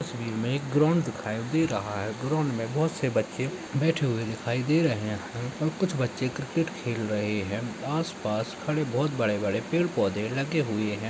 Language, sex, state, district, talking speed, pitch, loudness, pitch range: Hindi, male, Uttar Pradesh, Ghazipur, 200 wpm, 125 Hz, -28 LUFS, 110-155 Hz